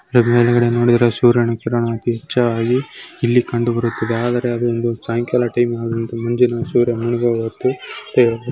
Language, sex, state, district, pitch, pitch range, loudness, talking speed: Kannada, male, Karnataka, Chamarajanagar, 120 Hz, 115-120 Hz, -17 LUFS, 90 wpm